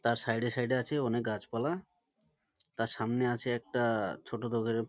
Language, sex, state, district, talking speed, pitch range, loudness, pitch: Bengali, male, West Bengal, Malda, 170 wpm, 115-125 Hz, -33 LUFS, 120 Hz